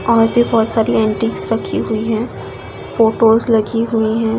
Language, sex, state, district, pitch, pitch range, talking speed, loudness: Hindi, female, Delhi, New Delhi, 225 Hz, 220-230 Hz, 165 wpm, -15 LUFS